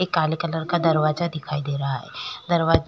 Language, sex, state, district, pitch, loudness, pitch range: Hindi, female, Uttar Pradesh, Jyotiba Phule Nagar, 160 Hz, -24 LUFS, 155-175 Hz